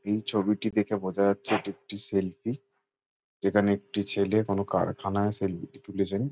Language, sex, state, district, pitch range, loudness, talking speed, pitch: Bengali, male, West Bengal, Jalpaiguri, 100-105 Hz, -29 LUFS, 160 wpm, 100 Hz